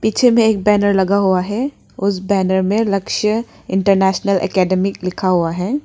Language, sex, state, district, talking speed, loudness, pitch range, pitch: Hindi, female, Arunachal Pradesh, Papum Pare, 165 wpm, -16 LUFS, 190-210 Hz, 195 Hz